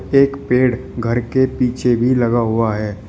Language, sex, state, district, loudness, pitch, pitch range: Hindi, male, Uttar Pradesh, Shamli, -17 LUFS, 120 Hz, 115-130 Hz